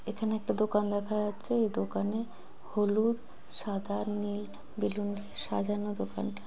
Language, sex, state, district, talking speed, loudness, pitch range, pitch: Bengali, female, West Bengal, Jalpaiguri, 130 wpm, -32 LUFS, 130-215 Hz, 205 Hz